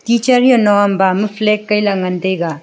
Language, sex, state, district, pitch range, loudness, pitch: Wancho, female, Arunachal Pradesh, Longding, 190-215 Hz, -13 LUFS, 205 Hz